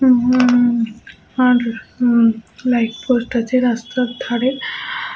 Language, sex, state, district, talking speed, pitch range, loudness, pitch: Bengali, female, West Bengal, Jhargram, 105 wpm, 235-255 Hz, -17 LUFS, 245 Hz